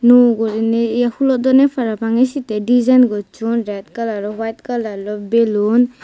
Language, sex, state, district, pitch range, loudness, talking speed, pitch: Chakma, female, Tripura, West Tripura, 215-245 Hz, -16 LUFS, 140 wpm, 230 Hz